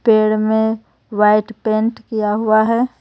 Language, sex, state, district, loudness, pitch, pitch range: Hindi, female, Jharkhand, Ranchi, -16 LUFS, 220 Hz, 215-225 Hz